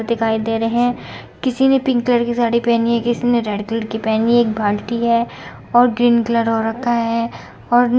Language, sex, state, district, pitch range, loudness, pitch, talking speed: Hindi, female, Uttar Pradesh, Muzaffarnagar, 225-240 Hz, -17 LUFS, 235 Hz, 250 wpm